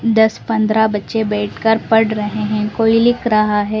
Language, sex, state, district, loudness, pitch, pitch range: Hindi, female, Delhi, New Delhi, -15 LUFS, 220 Hz, 210-225 Hz